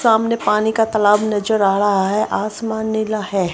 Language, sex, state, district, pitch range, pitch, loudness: Hindi, female, Uttar Pradesh, Jyotiba Phule Nagar, 205-220 Hz, 215 Hz, -17 LUFS